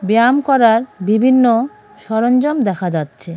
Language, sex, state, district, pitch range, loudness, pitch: Bengali, female, West Bengal, Cooch Behar, 200-255 Hz, -14 LUFS, 225 Hz